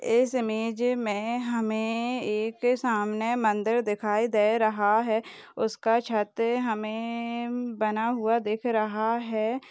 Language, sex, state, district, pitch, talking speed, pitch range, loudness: Hindi, female, Rajasthan, Nagaur, 225 Hz, 115 wpm, 215-235 Hz, -27 LUFS